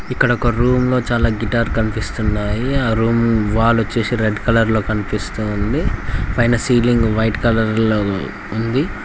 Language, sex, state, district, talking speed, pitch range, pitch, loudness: Telugu, male, Telangana, Mahabubabad, 145 wpm, 110-120 Hz, 115 Hz, -17 LUFS